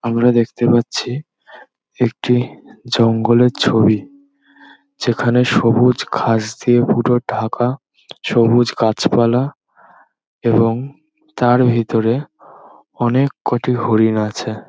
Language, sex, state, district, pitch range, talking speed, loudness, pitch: Bengali, male, West Bengal, Dakshin Dinajpur, 115-125 Hz, 100 wpm, -16 LUFS, 120 Hz